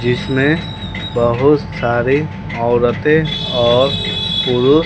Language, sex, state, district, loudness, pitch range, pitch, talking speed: Hindi, male, Bihar, West Champaran, -15 LUFS, 120-150 Hz, 125 Hz, 85 wpm